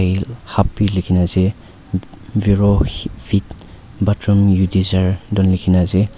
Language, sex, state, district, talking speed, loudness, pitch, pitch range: Nagamese, male, Nagaland, Kohima, 115 wpm, -17 LUFS, 95 Hz, 95-100 Hz